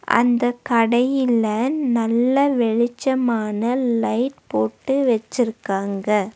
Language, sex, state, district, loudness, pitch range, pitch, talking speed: Tamil, female, Tamil Nadu, Nilgiris, -20 LUFS, 220-255 Hz, 235 Hz, 65 wpm